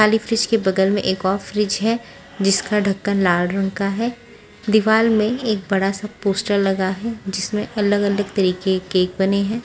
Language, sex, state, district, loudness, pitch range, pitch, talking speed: Hindi, female, Bihar, Patna, -19 LUFS, 195-215 Hz, 200 Hz, 185 wpm